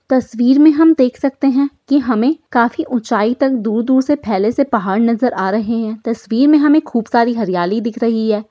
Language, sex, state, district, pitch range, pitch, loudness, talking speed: Hindi, female, Uttar Pradesh, Hamirpur, 225-275 Hz, 240 Hz, -15 LUFS, 220 wpm